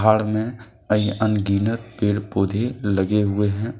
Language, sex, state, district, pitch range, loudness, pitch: Hindi, male, Jharkhand, Deoghar, 100-110 Hz, -22 LUFS, 105 Hz